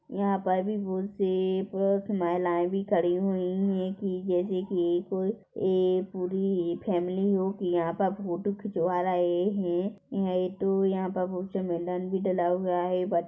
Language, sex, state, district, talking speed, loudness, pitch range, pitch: Hindi, female, Chhattisgarh, Korba, 155 wpm, -28 LUFS, 180-195 Hz, 185 Hz